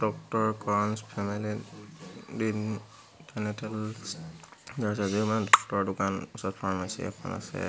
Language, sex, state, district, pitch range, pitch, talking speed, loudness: Assamese, male, Assam, Hailakandi, 100-110 Hz, 105 Hz, 80 wpm, -30 LUFS